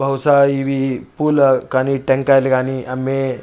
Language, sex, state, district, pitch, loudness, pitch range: Telugu, male, Andhra Pradesh, Chittoor, 135 Hz, -16 LUFS, 130-135 Hz